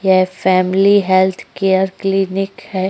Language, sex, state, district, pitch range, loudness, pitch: Hindi, female, Uttar Pradesh, Jyotiba Phule Nagar, 185-195 Hz, -15 LUFS, 190 Hz